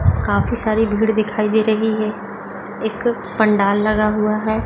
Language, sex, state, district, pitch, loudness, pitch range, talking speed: Hindi, female, Maharashtra, Dhule, 215 Hz, -18 LUFS, 210-220 Hz, 155 wpm